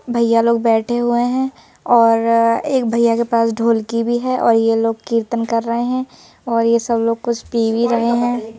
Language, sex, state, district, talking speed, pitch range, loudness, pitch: Hindi, female, Madhya Pradesh, Bhopal, 205 wpm, 230-240 Hz, -16 LUFS, 230 Hz